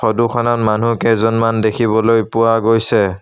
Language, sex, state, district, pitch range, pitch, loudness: Assamese, male, Assam, Sonitpur, 110-115 Hz, 115 Hz, -14 LUFS